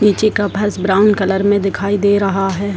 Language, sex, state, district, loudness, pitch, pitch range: Hindi, female, Bihar, Purnia, -15 LUFS, 200 Hz, 195-205 Hz